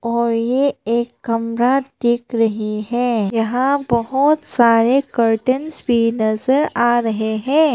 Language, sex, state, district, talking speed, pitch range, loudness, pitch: Hindi, female, Arunachal Pradesh, Papum Pare, 125 wpm, 230-265 Hz, -17 LUFS, 235 Hz